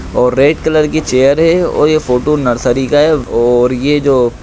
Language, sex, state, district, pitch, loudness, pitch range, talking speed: Hindi, male, Bihar, Lakhisarai, 140 Hz, -11 LUFS, 125-155 Hz, 215 wpm